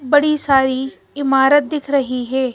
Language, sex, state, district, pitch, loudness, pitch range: Hindi, female, Madhya Pradesh, Bhopal, 270 Hz, -16 LUFS, 265-290 Hz